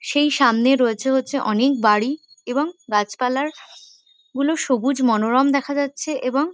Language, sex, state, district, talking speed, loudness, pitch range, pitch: Bengali, female, West Bengal, Kolkata, 130 wpm, -20 LUFS, 250-290 Hz, 270 Hz